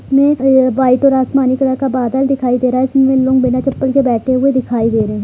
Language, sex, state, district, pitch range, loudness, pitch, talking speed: Hindi, female, Bihar, Purnia, 255-270 Hz, -13 LUFS, 260 Hz, 250 wpm